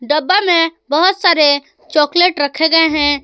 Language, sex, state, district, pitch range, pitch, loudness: Hindi, female, Jharkhand, Ranchi, 290-350 Hz, 320 Hz, -13 LUFS